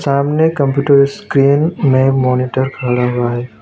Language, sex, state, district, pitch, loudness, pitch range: Hindi, male, West Bengal, Alipurduar, 135 Hz, -14 LUFS, 125-140 Hz